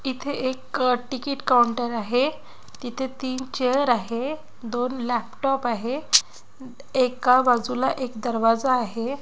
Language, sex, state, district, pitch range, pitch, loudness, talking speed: Marathi, female, Maharashtra, Nagpur, 240-265 Hz, 255 Hz, -23 LUFS, 110 wpm